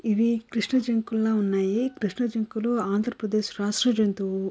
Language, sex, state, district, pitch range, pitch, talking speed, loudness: Telugu, female, Andhra Pradesh, Chittoor, 205-235 Hz, 220 Hz, 120 wpm, -25 LUFS